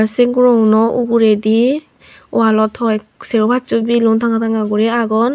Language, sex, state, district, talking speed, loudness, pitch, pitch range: Chakma, female, Tripura, Unakoti, 135 wpm, -14 LUFS, 230 Hz, 220-235 Hz